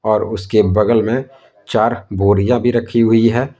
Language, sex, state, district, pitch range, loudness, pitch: Hindi, male, Jharkhand, Deoghar, 105-120 Hz, -15 LUFS, 115 Hz